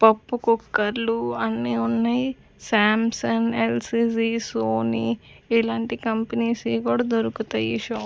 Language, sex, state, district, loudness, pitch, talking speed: Telugu, female, Andhra Pradesh, Sri Satya Sai, -23 LUFS, 210 Hz, 110 wpm